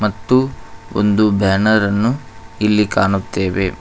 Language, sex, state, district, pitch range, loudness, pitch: Kannada, male, Karnataka, Koppal, 95-110 Hz, -16 LUFS, 105 Hz